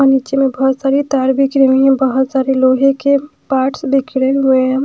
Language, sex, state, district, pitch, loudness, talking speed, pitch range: Hindi, female, Bihar, West Champaran, 270 Hz, -13 LUFS, 210 wpm, 265-275 Hz